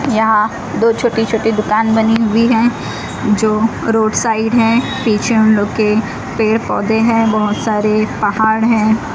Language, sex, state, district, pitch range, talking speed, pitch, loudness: Hindi, female, Odisha, Malkangiri, 215-225 Hz, 150 wpm, 220 Hz, -14 LUFS